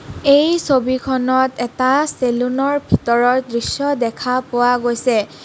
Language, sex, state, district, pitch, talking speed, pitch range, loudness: Assamese, female, Assam, Kamrup Metropolitan, 255 Hz, 110 wpm, 245-270 Hz, -17 LUFS